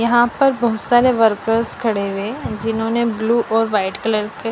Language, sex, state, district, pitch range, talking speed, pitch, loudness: Hindi, female, Punjab, Fazilka, 220-235 Hz, 170 wpm, 225 Hz, -18 LUFS